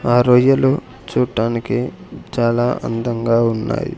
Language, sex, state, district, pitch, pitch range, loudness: Telugu, male, Andhra Pradesh, Sri Satya Sai, 120 Hz, 115-130 Hz, -17 LUFS